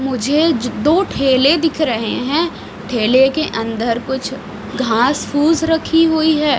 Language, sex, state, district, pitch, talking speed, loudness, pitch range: Hindi, female, Maharashtra, Washim, 275 Hz, 135 wpm, -16 LUFS, 245-315 Hz